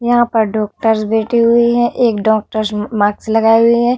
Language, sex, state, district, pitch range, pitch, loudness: Hindi, female, Bihar, Vaishali, 215-235 Hz, 225 Hz, -14 LUFS